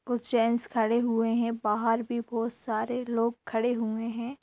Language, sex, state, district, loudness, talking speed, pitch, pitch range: Hindi, female, Bihar, Sitamarhi, -28 LUFS, 175 wpm, 230 Hz, 225-240 Hz